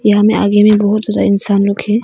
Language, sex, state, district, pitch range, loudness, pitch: Hindi, female, Arunachal Pradesh, Longding, 205-215 Hz, -12 LUFS, 210 Hz